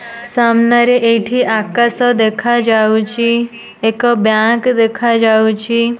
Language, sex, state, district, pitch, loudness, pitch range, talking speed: Odia, female, Odisha, Nuapada, 235 Hz, -12 LUFS, 220-240 Hz, 70 wpm